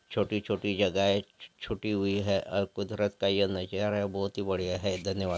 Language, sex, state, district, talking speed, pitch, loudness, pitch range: Hindi, female, Chhattisgarh, Korba, 165 wpm, 100 Hz, -30 LUFS, 95-100 Hz